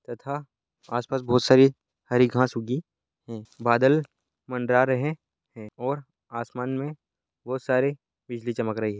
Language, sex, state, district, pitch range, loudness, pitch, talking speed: Hindi, male, Chhattisgarh, Balrampur, 120-135 Hz, -25 LUFS, 125 Hz, 140 wpm